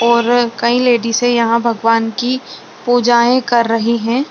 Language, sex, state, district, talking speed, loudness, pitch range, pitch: Hindi, female, Bihar, Saran, 140 wpm, -14 LUFS, 230-245 Hz, 235 Hz